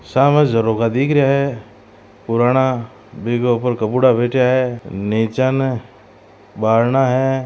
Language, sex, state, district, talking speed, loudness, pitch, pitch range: Marwari, male, Rajasthan, Churu, 115 wpm, -16 LUFS, 120 Hz, 110-130 Hz